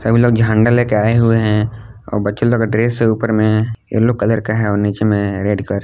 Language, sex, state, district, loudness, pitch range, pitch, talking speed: Hindi, male, Jharkhand, Palamu, -15 LUFS, 105-115 Hz, 110 Hz, 255 wpm